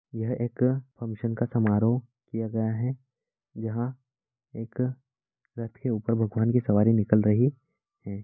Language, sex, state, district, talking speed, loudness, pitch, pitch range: Hindi, male, Uttar Pradesh, Etah, 140 wpm, -27 LUFS, 120 Hz, 110-125 Hz